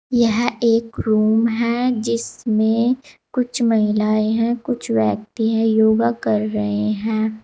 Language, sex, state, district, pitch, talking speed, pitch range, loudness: Hindi, female, Uttar Pradesh, Saharanpur, 225 Hz, 120 wpm, 215-235 Hz, -19 LUFS